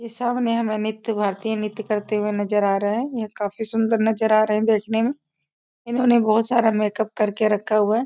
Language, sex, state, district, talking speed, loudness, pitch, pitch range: Hindi, female, Bihar, East Champaran, 210 wpm, -21 LUFS, 220 Hz, 210-225 Hz